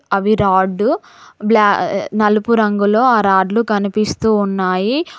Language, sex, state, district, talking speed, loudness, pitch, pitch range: Telugu, female, Telangana, Mahabubabad, 105 wpm, -15 LUFS, 210 Hz, 200-220 Hz